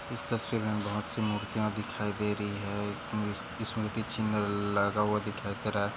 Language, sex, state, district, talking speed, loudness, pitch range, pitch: Hindi, male, Maharashtra, Aurangabad, 180 wpm, -33 LUFS, 105-110 Hz, 105 Hz